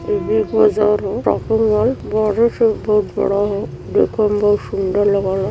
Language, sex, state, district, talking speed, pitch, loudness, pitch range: Awadhi, female, Uttar Pradesh, Varanasi, 195 wpm, 210 Hz, -17 LUFS, 205-235 Hz